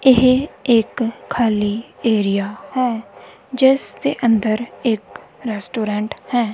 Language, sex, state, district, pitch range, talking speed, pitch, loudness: Punjabi, female, Punjab, Kapurthala, 215-255 Hz, 90 wpm, 230 Hz, -19 LUFS